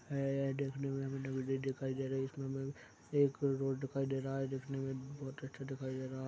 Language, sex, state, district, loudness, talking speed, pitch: Hindi, male, Chhattisgarh, Balrampur, -39 LUFS, 240 wpm, 135 Hz